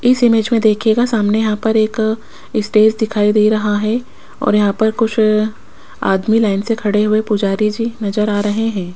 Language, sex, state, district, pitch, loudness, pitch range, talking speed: Hindi, female, Rajasthan, Jaipur, 215 Hz, -15 LUFS, 210-225 Hz, 185 wpm